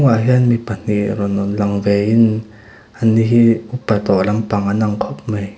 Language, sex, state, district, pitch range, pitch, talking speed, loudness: Mizo, male, Mizoram, Aizawl, 100-115 Hz, 105 Hz, 170 wpm, -16 LUFS